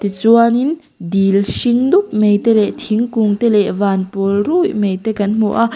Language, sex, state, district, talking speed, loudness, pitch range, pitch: Mizo, female, Mizoram, Aizawl, 200 wpm, -14 LUFS, 200-235 Hz, 215 Hz